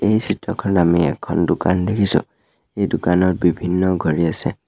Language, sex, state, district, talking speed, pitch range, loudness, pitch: Assamese, male, Assam, Sonitpur, 140 wpm, 85-100 Hz, -18 LUFS, 90 Hz